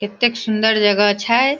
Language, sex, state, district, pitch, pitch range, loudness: Maithili, female, Bihar, Sitamarhi, 220 Hz, 205-235 Hz, -16 LUFS